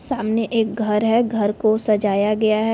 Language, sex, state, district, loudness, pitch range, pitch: Hindi, female, Uttar Pradesh, Jalaun, -19 LUFS, 210-225 Hz, 220 Hz